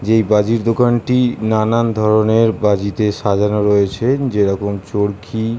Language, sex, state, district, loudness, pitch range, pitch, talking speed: Bengali, male, West Bengal, Kolkata, -15 LUFS, 105-115 Hz, 110 Hz, 130 wpm